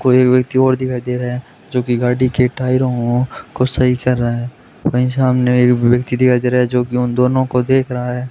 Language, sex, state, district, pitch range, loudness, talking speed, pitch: Hindi, male, Rajasthan, Bikaner, 125-130 Hz, -15 LUFS, 240 wpm, 125 Hz